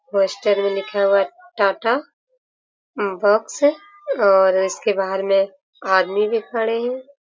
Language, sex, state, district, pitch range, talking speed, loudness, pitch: Hindi, female, Jharkhand, Sahebganj, 195-270 Hz, 130 wpm, -19 LUFS, 210 Hz